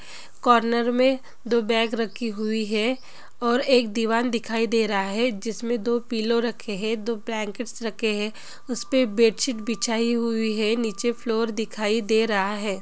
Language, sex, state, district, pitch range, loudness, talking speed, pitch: Hindi, female, Bihar, Gopalganj, 220-235 Hz, -24 LUFS, 160 wpm, 230 Hz